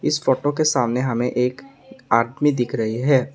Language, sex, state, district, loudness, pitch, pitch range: Hindi, male, Assam, Sonitpur, -20 LUFS, 125 Hz, 120-140 Hz